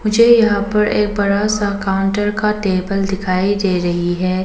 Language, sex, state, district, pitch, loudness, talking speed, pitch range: Hindi, female, Arunachal Pradesh, Papum Pare, 200 Hz, -16 LUFS, 175 wpm, 190-210 Hz